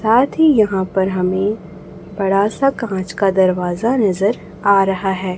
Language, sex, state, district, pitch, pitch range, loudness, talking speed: Hindi, female, Chhattisgarh, Raipur, 195 Hz, 190-215 Hz, -16 LUFS, 155 wpm